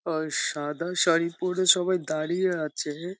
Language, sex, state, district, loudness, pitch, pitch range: Bengali, female, West Bengal, Jhargram, -26 LUFS, 170 Hz, 155-180 Hz